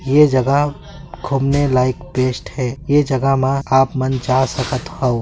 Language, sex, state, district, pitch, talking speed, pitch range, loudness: Hindi, male, Chhattisgarh, Sarguja, 135 Hz, 170 wpm, 130-145 Hz, -17 LUFS